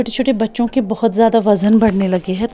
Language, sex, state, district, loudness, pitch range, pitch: Hindi, female, Bihar, Patna, -15 LUFS, 210-235 Hz, 225 Hz